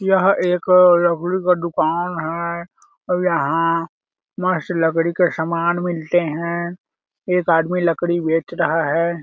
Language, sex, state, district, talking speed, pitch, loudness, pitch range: Hindi, male, Chhattisgarh, Balrampur, 130 wpm, 170 Hz, -18 LUFS, 165-180 Hz